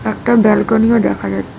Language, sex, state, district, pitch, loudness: Bengali, female, West Bengal, Alipurduar, 215 Hz, -13 LUFS